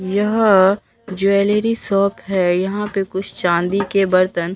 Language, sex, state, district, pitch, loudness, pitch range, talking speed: Hindi, female, Bihar, Katihar, 195 Hz, -17 LUFS, 185-205 Hz, 130 wpm